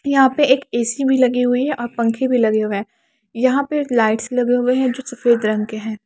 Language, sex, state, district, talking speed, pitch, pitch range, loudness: Hindi, female, Haryana, Charkhi Dadri, 245 wpm, 245 Hz, 225-265 Hz, -18 LUFS